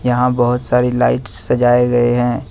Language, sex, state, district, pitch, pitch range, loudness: Hindi, male, Jharkhand, Ranchi, 125 Hz, 120-125 Hz, -14 LUFS